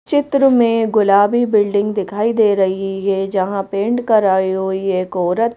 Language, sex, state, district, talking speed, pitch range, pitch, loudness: Hindi, female, Madhya Pradesh, Bhopal, 150 wpm, 195-225 Hz, 205 Hz, -16 LUFS